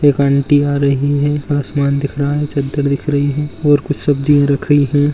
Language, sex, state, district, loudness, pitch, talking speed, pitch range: Hindi, male, Bihar, Begusarai, -15 LUFS, 145 Hz, 220 wpm, 140-145 Hz